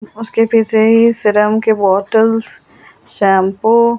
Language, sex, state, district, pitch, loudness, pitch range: Hindi, female, Delhi, New Delhi, 220 Hz, -12 LUFS, 210-225 Hz